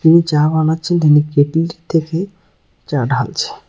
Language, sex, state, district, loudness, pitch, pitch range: Bengali, male, West Bengal, Cooch Behar, -15 LUFS, 160 Hz, 155-165 Hz